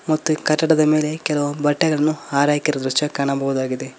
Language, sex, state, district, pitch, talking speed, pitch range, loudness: Kannada, male, Karnataka, Koppal, 150 Hz, 120 wpm, 140-155 Hz, -19 LUFS